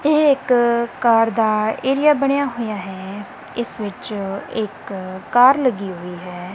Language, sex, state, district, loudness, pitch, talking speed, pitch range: Punjabi, female, Punjab, Kapurthala, -19 LUFS, 225 Hz, 135 wpm, 195-255 Hz